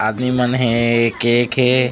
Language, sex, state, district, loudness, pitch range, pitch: Chhattisgarhi, male, Chhattisgarh, Raigarh, -16 LUFS, 115-125 Hz, 120 Hz